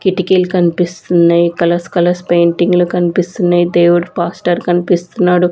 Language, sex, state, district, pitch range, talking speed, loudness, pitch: Telugu, female, Andhra Pradesh, Sri Satya Sai, 175-180 Hz, 100 wpm, -13 LUFS, 175 Hz